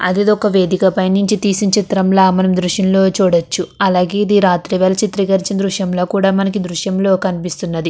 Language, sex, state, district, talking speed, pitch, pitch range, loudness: Telugu, female, Andhra Pradesh, Krishna, 135 wpm, 190 Hz, 185-195 Hz, -14 LUFS